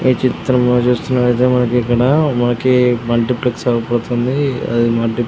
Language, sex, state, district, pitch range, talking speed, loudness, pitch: Telugu, male, Telangana, Karimnagar, 120-125 Hz, 100 wpm, -15 LUFS, 125 Hz